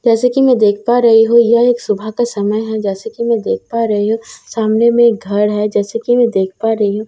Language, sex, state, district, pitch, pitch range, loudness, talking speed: Hindi, female, Bihar, Katihar, 225 Hz, 210-235 Hz, -13 LUFS, 265 wpm